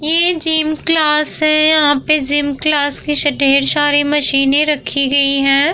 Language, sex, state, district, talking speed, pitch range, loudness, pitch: Hindi, female, Bihar, Vaishali, 155 wpm, 280-310 Hz, -12 LUFS, 295 Hz